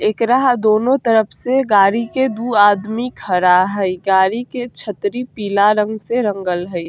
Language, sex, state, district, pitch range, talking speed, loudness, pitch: Bajjika, female, Bihar, Vaishali, 200-245 Hz, 155 wpm, -16 LUFS, 215 Hz